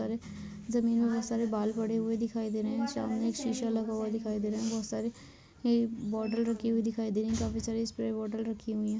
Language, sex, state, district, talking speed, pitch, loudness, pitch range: Hindi, female, Bihar, Vaishali, 255 wpm, 225 Hz, -32 LUFS, 220-230 Hz